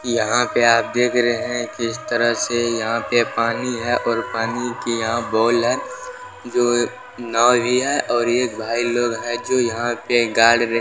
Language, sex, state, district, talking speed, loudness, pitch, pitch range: Maithili, male, Bihar, Supaul, 195 wpm, -19 LUFS, 120 Hz, 115-125 Hz